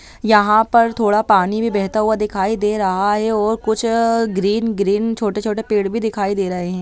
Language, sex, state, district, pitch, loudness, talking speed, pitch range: Hindi, female, Bihar, Sitamarhi, 215 Hz, -17 LUFS, 200 wpm, 200-225 Hz